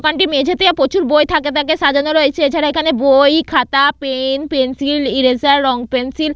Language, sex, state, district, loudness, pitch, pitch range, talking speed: Bengali, female, West Bengal, Paschim Medinipur, -14 LUFS, 285 Hz, 270-310 Hz, 170 wpm